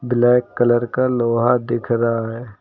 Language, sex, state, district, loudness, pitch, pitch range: Hindi, male, Uttar Pradesh, Lucknow, -18 LUFS, 120 Hz, 115-125 Hz